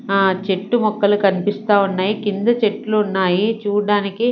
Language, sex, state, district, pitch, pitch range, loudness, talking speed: Telugu, female, Andhra Pradesh, Sri Satya Sai, 205 Hz, 195-215 Hz, -18 LUFS, 125 wpm